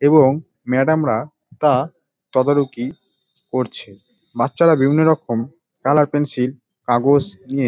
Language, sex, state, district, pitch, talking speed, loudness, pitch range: Bengali, male, West Bengal, Dakshin Dinajpur, 140 Hz, 100 wpm, -18 LUFS, 125-150 Hz